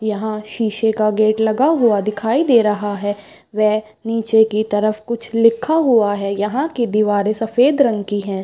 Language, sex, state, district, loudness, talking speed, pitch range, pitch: Hindi, female, Bihar, Madhepura, -17 LUFS, 180 wpm, 210-230 Hz, 215 Hz